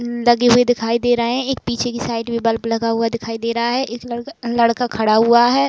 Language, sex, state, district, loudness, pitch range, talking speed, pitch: Hindi, female, Uttar Pradesh, Budaun, -17 LUFS, 230-245 Hz, 240 wpm, 235 Hz